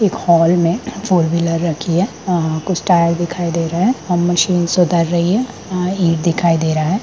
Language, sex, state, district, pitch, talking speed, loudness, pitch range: Hindi, female, Bihar, Darbhanga, 175 Hz, 190 wpm, -16 LUFS, 170-185 Hz